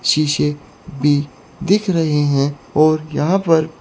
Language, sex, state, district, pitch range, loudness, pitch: Hindi, female, Chandigarh, Chandigarh, 145-165 Hz, -17 LUFS, 155 Hz